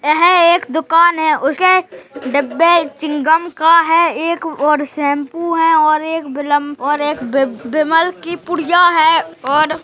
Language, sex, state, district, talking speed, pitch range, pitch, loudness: Hindi, female, Chhattisgarh, Jashpur, 145 wpm, 290-335 Hz, 315 Hz, -14 LUFS